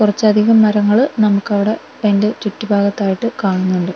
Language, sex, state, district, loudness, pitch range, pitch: Malayalam, female, Kerala, Wayanad, -15 LUFS, 200-215 Hz, 210 Hz